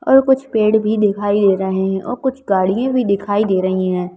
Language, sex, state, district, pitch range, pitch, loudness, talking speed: Hindi, female, Madhya Pradesh, Bhopal, 190-245 Hz, 205 Hz, -16 LUFS, 230 wpm